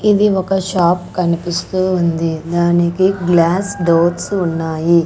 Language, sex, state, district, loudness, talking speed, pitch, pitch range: Telugu, female, Andhra Pradesh, Sri Satya Sai, -15 LUFS, 105 wpm, 175 Hz, 170-185 Hz